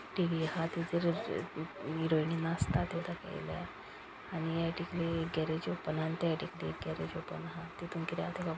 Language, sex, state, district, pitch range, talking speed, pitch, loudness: Konkani, male, Goa, North and South Goa, 160-170 Hz, 175 wpm, 165 Hz, -37 LUFS